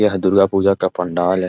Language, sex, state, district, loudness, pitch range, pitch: Hindi, male, Bihar, Jamui, -16 LUFS, 90-100 Hz, 95 Hz